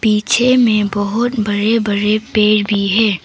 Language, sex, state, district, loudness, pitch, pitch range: Hindi, female, Arunachal Pradesh, Papum Pare, -14 LUFS, 210 Hz, 205-230 Hz